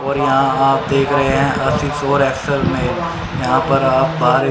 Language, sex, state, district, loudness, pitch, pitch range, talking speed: Hindi, male, Haryana, Rohtak, -16 LUFS, 135 Hz, 135-145 Hz, 135 wpm